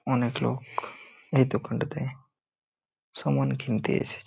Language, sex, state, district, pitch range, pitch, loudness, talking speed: Bengali, male, West Bengal, Malda, 105-135 Hz, 130 Hz, -28 LUFS, 110 wpm